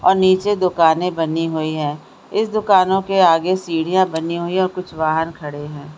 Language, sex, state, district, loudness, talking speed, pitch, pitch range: Hindi, female, Bihar, Supaul, -18 LUFS, 190 wpm, 170 Hz, 160-185 Hz